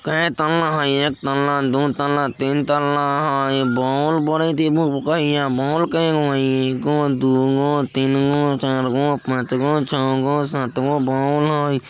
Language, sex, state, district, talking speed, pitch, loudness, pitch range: Maithili, male, Bihar, Vaishali, 170 wpm, 140 Hz, -19 LUFS, 135-150 Hz